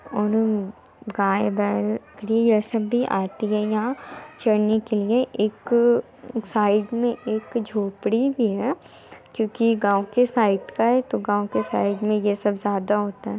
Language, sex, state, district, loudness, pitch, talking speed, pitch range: Hindi, female, Bihar, Muzaffarpur, -22 LUFS, 215 Hz, 175 wpm, 205-230 Hz